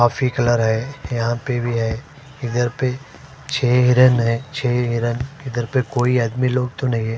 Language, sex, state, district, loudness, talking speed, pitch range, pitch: Hindi, male, Punjab, Fazilka, -19 LUFS, 185 wpm, 120-130 Hz, 125 Hz